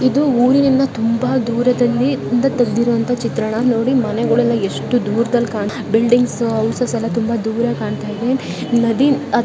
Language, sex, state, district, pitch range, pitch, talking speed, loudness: Kannada, female, Karnataka, Shimoga, 230-250 Hz, 235 Hz, 135 wpm, -16 LUFS